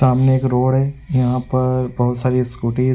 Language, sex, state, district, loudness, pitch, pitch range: Hindi, male, Chhattisgarh, Raigarh, -18 LUFS, 130 Hz, 125-130 Hz